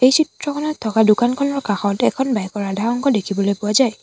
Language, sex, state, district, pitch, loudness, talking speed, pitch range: Assamese, female, Assam, Sonitpur, 235 Hz, -18 LUFS, 195 wpm, 205-275 Hz